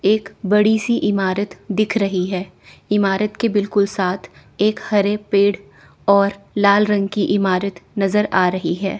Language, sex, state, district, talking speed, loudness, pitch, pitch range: Hindi, female, Chandigarh, Chandigarh, 155 wpm, -18 LUFS, 200 Hz, 195-210 Hz